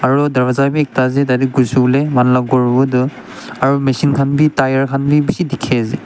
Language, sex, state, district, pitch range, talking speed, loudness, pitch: Nagamese, male, Nagaland, Dimapur, 125-140 Hz, 215 wpm, -14 LUFS, 135 Hz